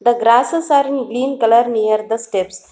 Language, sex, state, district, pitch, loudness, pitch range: English, female, Telangana, Hyderabad, 235 Hz, -15 LUFS, 225-265 Hz